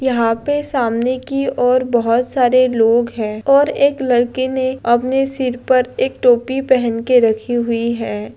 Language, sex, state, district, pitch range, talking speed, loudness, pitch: Hindi, female, Bihar, Madhepura, 235-260 Hz, 150 wpm, -16 LUFS, 250 Hz